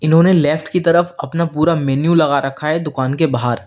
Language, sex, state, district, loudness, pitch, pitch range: Hindi, male, Uttar Pradesh, Lalitpur, -15 LUFS, 155 Hz, 140-170 Hz